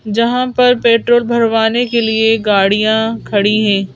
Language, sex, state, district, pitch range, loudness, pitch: Hindi, female, Madhya Pradesh, Bhopal, 215-235 Hz, -13 LUFS, 225 Hz